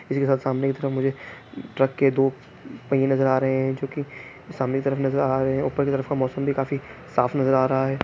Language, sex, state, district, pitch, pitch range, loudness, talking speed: Hindi, female, West Bengal, North 24 Parganas, 135 Hz, 130-135 Hz, -23 LUFS, 245 wpm